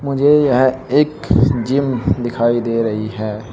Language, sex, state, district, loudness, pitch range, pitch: Hindi, male, Uttar Pradesh, Shamli, -16 LUFS, 115-140 Hz, 120 Hz